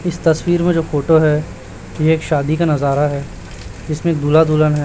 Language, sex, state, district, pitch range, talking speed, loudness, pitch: Hindi, male, Chhattisgarh, Raipur, 140-160 Hz, 200 wpm, -16 LUFS, 155 Hz